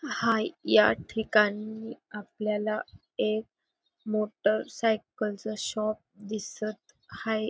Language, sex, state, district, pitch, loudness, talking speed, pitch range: Marathi, female, Maharashtra, Dhule, 215 Hz, -29 LUFS, 70 wpm, 215-220 Hz